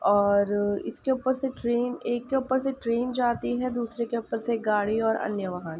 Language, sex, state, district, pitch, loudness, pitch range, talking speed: Hindi, female, Uttar Pradesh, Ghazipur, 235 Hz, -27 LUFS, 210-250 Hz, 205 wpm